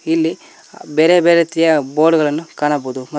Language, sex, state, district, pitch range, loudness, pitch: Kannada, male, Karnataka, Koppal, 150-165 Hz, -15 LUFS, 160 Hz